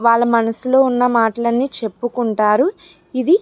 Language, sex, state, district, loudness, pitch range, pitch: Telugu, female, Andhra Pradesh, Chittoor, -17 LUFS, 225-255 Hz, 240 Hz